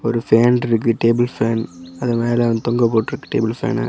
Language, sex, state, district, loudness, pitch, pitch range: Tamil, male, Tamil Nadu, Kanyakumari, -18 LUFS, 115 Hz, 115-120 Hz